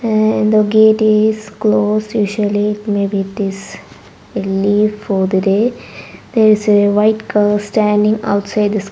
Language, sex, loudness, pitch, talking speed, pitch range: English, female, -14 LUFS, 210 Hz, 150 wpm, 205-215 Hz